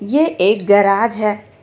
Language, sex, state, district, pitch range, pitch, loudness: Hindi, female, Jharkhand, Ranchi, 200-230 Hz, 210 Hz, -15 LUFS